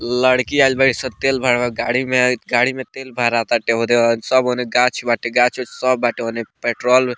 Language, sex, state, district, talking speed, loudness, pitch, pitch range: Bhojpuri, male, Bihar, Muzaffarpur, 160 wpm, -17 LUFS, 125 Hz, 120-130 Hz